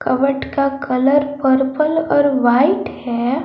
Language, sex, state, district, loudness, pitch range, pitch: Hindi, female, Jharkhand, Garhwa, -16 LUFS, 260-285 Hz, 275 Hz